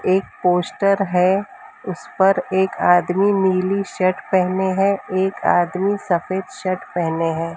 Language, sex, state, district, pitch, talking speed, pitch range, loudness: Hindi, female, Maharashtra, Mumbai Suburban, 185 Hz, 135 wpm, 180-195 Hz, -19 LUFS